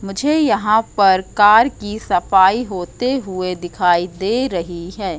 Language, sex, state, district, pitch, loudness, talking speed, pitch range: Hindi, female, Madhya Pradesh, Katni, 195 Hz, -16 LUFS, 140 wpm, 185-220 Hz